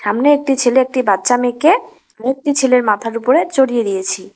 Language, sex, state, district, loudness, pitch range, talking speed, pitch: Bengali, female, West Bengal, Cooch Behar, -15 LUFS, 230-275 Hz, 165 wpm, 255 Hz